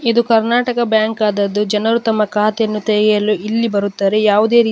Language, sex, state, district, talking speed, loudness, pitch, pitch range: Kannada, female, Karnataka, Dakshina Kannada, 165 wpm, -15 LUFS, 215 Hz, 210-230 Hz